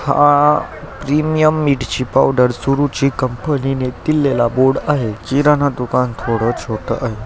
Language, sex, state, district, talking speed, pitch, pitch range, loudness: Marathi, male, Maharashtra, Chandrapur, 115 wpm, 135 Hz, 120-145 Hz, -16 LUFS